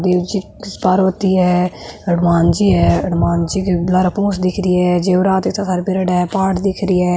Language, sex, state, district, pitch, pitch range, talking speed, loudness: Marwari, female, Rajasthan, Nagaur, 185 Hz, 180-190 Hz, 190 wpm, -15 LUFS